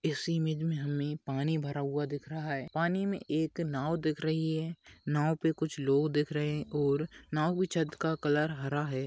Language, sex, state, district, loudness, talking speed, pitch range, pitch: Hindi, female, Uttar Pradesh, Etah, -32 LUFS, 210 wpm, 145-160 Hz, 155 Hz